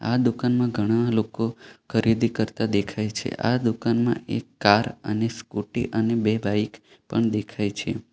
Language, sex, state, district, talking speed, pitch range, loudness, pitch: Gujarati, male, Gujarat, Valsad, 150 wpm, 105-120 Hz, -24 LUFS, 115 Hz